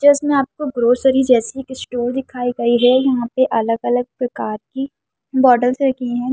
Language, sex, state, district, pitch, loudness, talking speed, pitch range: Hindi, female, Chhattisgarh, Kabirdham, 250 Hz, -17 LUFS, 180 wpm, 240-270 Hz